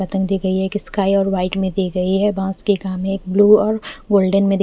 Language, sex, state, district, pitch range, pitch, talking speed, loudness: Hindi, female, Punjab, Fazilka, 190-200 Hz, 195 Hz, 260 wpm, -18 LUFS